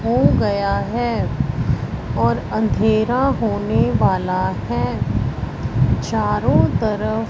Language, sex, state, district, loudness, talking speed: Hindi, female, Punjab, Fazilka, -19 LUFS, 80 wpm